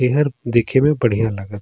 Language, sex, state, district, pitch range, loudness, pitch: Surgujia, male, Chhattisgarh, Sarguja, 110-140 Hz, -18 LUFS, 120 Hz